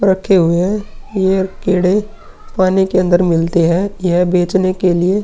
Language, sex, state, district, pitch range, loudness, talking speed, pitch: Hindi, male, Uttar Pradesh, Muzaffarnagar, 175-190 Hz, -14 LUFS, 170 wpm, 185 Hz